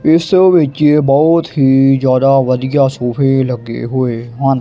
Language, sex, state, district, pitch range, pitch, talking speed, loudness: Punjabi, male, Punjab, Kapurthala, 130-150 Hz, 135 Hz, 145 wpm, -12 LUFS